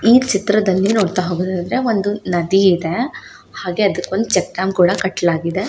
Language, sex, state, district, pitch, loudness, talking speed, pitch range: Kannada, female, Karnataka, Shimoga, 190 Hz, -17 LUFS, 125 wpm, 180-210 Hz